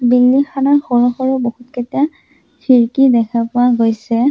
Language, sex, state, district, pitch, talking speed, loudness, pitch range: Assamese, female, Assam, Sonitpur, 245 Hz, 125 wpm, -14 LUFS, 240-270 Hz